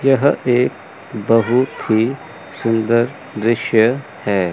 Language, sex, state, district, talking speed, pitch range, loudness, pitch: Hindi, male, Chandigarh, Chandigarh, 95 wpm, 110-130 Hz, -17 LUFS, 115 Hz